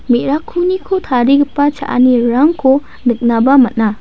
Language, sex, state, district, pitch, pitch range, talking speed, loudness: Garo, female, Meghalaya, West Garo Hills, 270 Hz, 240-295 Hz, 75 wpm, -12 LUFS